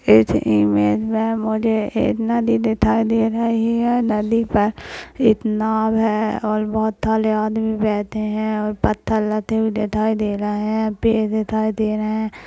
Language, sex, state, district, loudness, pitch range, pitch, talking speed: Hindi, male, Maharashtra, Nagpur, -19 LUFS, 215-220 Hz, 220 Hz, 165 wpm